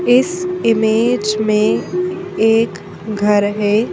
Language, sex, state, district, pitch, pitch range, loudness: Hindi, female, Madhya Pradesh, Bhopal, 220 Hz, 210-255 Hz, -16 LUFS